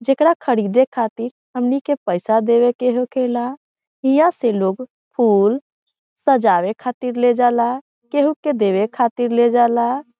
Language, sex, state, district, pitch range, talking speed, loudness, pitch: Bhojpuri, female, Bihar, Saran, 235-265 Hz, 135 wpm, -18 LUFS, 245 Hz